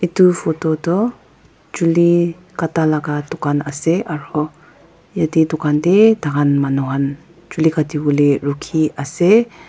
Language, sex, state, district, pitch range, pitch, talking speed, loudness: Nagamese, female, Nagaland, Dimapur, 145-175 Hz, 160 Hz, 130 wpm, -17 LUFS